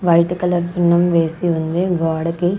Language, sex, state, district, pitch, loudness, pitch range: Telugu, female, Andhra Pradesh, Sri Satya Sai, 170 Hz, -17 LUFS, 165-175 Hz